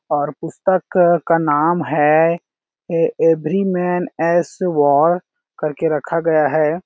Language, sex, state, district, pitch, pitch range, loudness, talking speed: Hindi, male, Chhattisgarh, Balrampur, 165 Hz, 155-175 Hz, -17 LUFS, 140 wpm